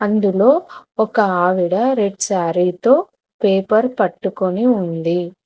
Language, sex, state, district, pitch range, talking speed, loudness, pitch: Telugu, female, Telangana, Hyderabad, 180-225 Hz, 100 wpm, -17 LUFS, 200 Hz